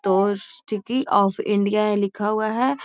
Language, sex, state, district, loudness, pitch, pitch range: Magahi, female, Bihar, Gaya, -22 LUFS, 210 Hz, 200-235 Hz